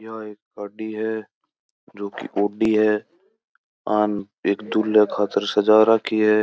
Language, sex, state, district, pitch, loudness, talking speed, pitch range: Marwari, male, Rajasthan, Churu, 105 Hz, -21 LUFS, 140 wpm, 105-110 Hz